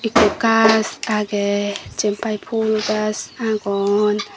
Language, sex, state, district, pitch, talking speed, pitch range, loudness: Chakma, female, Tripura, Dhalai, 215 Hz, 95 wpm, 205-220 Hz, -19 LUFS